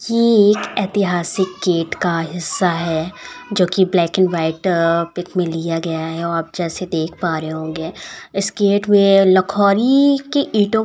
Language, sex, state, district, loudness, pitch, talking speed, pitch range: Hindi, female, Uttar Pradesh, Ghazipur, -17 LUFS, 180 Hz, 165 wpm, 165-200 Hz